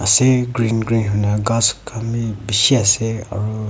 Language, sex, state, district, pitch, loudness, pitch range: Nagamese, female, Nagaland, Kohima, 110 Hz, -17 LUFS, 105-115 Hz